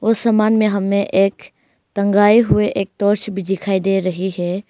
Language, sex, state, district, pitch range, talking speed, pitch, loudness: Hindi, female, Arunachal Pradesh, Longding, 190-210 Hz, 165 wpm, 200 Hz, -17 LUFS